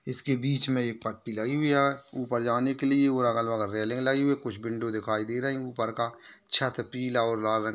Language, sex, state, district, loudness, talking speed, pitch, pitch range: Hindi, male, Maharashtra, Nagpur, -28 LUFS, 240 wpm, 120 Hz, 115-135 Hz